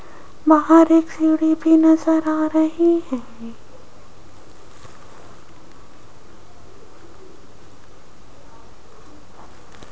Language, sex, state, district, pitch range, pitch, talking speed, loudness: Hindi, female, Rajasthan, Jaipur, 230-320 Hz, 315 Hz, 50 wpm, -16 LUFS